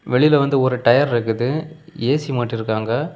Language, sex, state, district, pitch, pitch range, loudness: Tamil, male, Tamil Nadu, Kanyakumari, 130 Hz, 120-150 Hz, -18 LUFS